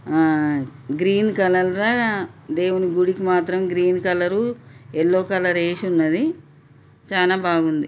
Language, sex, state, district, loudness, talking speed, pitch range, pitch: Telugu, female, Telangana, Nalgonda, -20 LUFS, 115 wpm, 155-185 Hz, 180 Hz